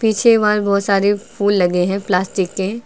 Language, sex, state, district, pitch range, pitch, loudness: Hindi, female, Uttar Pradesh, Lucknow, 190-210 Hz, 200 Hz, -16 LUFS